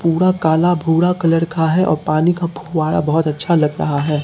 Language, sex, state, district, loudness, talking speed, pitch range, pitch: Hindi, male, Bihar, Katihar, -16 LUFS, 210 wpm, 155-170 Hz, 160 Hz